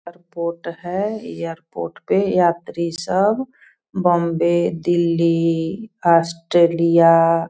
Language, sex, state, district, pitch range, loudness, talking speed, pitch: Hindi, female, Bihar, Sitamarhi, 165-180 Hz, -19 LUFS, 80 wpm, 170 Hz